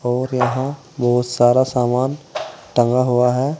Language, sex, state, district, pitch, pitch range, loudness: Hindi, male, Uttar Pradesh, Saharanpur, 125 Hz, 125-130 Hz, -18 LUFS